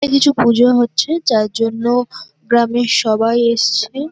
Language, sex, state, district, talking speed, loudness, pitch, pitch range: Bengali, female, West Bengal, North 24 Parganas, 145 wpm, -14 LUFS, 235 Hz, 225-260 Hz